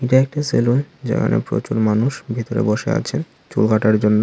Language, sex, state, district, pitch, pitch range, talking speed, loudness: Bengali, male, Tripura, Unakoti, 115 Hz, 105-130 Hz, 170 wpm, -19 LUFS